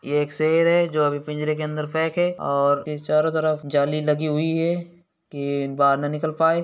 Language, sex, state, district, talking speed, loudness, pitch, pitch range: Hindi, male, Bihar, East Champaran, 215 wpm, -22 LUFS, 155 Hz, 145-160 Hz